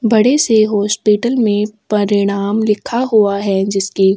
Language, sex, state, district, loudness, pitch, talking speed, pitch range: Hindi, female, Chhattisgarh, Sukma, -14 LUFS, 210 Hz, 145 wpm, 200-220 Hz